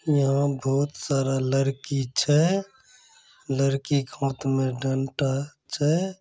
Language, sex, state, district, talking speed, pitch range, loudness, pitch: Angika, male, Bihar, Begusarai, 105 wpm, 135-155 Hz, -25 LUFS, 140 Hz